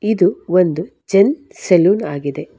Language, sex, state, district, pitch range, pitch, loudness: Kannada, female, Karnataka, Bangalore, 160-200 Hz, 180 Hz, -16 LUFS